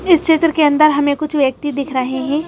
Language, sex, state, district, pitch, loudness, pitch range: Hindi, female, Madhya Pradesh, Bhopal, 295 Hz, -15 LUFS, 280-310 Hz